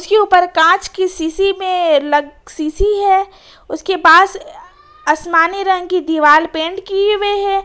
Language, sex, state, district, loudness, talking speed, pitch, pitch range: Hindi, female, Jharkhand, Ranchi, -13 LUFS, 155 wpm, 370 Hz, 320-390 Hz